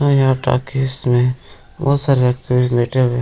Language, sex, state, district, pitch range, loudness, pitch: Hindi, male, Bihar, Jamui, 125-135 Hz, -16 LUFS, 130 Hz